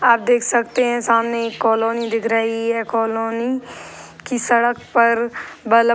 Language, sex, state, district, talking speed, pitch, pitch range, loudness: Hindi, female, Bihar, Sitamarhi, 160 wpm, 235 Hz, 225-240 Hz, -18 LUFS